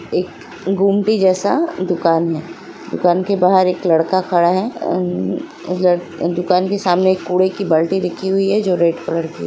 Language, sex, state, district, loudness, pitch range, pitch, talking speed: Hindi, female, Chhattisgarh, Sukma, -17 LUFS, 170-190 Hz, 180 Hz, 170 wpm